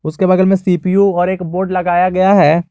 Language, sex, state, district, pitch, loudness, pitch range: Hindi, male, Jharkhand, Garhwa, 185 Hz, -13 LUFS, 175-190 Hz